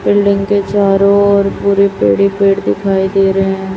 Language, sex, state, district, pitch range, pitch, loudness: Hindi, male, Chhattisgarh, Raipur, 195-200 Hz, 195 Hz, -12 LUFS